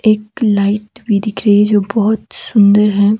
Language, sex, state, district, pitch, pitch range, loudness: Hindi, female, Himachal Pradesh, Shimla, 210 Hz, 205-215 Hz, -13 LUFS